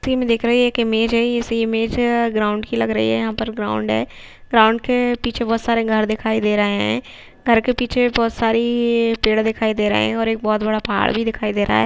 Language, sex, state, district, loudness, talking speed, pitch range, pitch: Hindi, female, Jharkhand, Sahebganj, -18 LUFS, 260 wpm, 210-235 Hz, 225 Hz